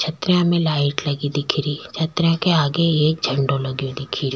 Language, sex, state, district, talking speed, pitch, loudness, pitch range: Rajasthani, female, Rajasthan, Churu, 165 wpm, 150 Hz, -20 LUFS, 140-165 Hz